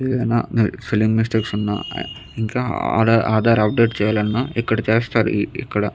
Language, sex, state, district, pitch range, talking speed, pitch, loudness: Telugu, male, Andhra Pradesh, Chittoor, 110-115 Hz, 120 wpm, 110 Hz, -19 LUFS